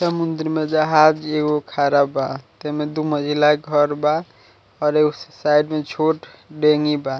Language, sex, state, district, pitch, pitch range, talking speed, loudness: Bhojpuri, male, Bihar, Muzaffarpur, 150 Hz, 145-155 Hz, 160 wpm, -19 LUFS